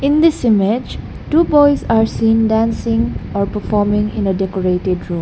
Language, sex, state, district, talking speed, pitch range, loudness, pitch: English, female, Sikkim, Gangtok, 150 wpm, 200-240 Hz, -15 LUFS, 220 Hz